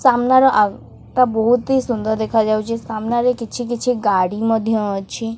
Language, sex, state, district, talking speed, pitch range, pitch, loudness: Odia, female, Odisha, Khordha, 145 wpm, 220-245 Hz, 225 Hz, -18 LUFS